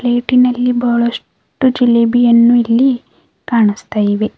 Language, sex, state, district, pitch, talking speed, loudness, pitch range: Kannada, female, Karnataka, Bidar, 240 Hz, 80 wpm, -13 LUFS, 235-250 Hz